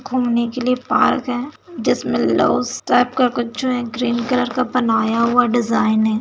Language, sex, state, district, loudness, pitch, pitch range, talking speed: Hindi, female, Bihar, Bhagalpur, -18 LUFS, 245 Hz, 235-250 Hz, 185 wpm